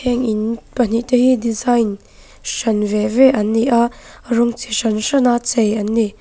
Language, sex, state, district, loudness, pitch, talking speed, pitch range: Mizo, female, Mizoram, Aizawl, -17 LUFS, 230 Hz, 205 wpm, 220-245 Hz